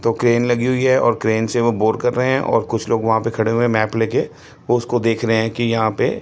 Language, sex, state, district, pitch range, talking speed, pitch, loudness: Hindi, male, Chandigarh, Chandigarh, 110-120 Hz, 280 wpm, 115 Hz, -18 LUFS